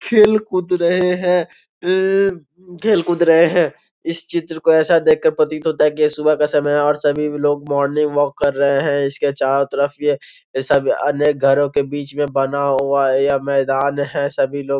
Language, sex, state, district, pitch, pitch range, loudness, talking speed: Hindi, male, Bihar, Gopalganj, 145 Hz, 140-170 Hz, -17 LUFS, 210 wpm